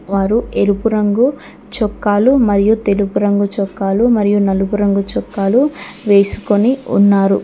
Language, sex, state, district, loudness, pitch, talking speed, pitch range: Telugu, female, Telangana, Mahabubabad, -14 LUFS, 205 Hz, 105 wpm, 200-225 Hz